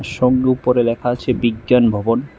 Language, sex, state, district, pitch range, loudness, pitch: Bengali, male, Tripura, West Tripura, 115-125 Hz, -16 LUFS, 125 Hz